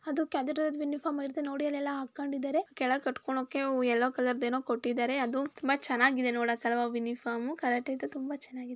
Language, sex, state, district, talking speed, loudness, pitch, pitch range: Kannada, female, Karnataka, Mysore, 110 wpm, -31 LUFS, 265 Hz, 250-285 Hz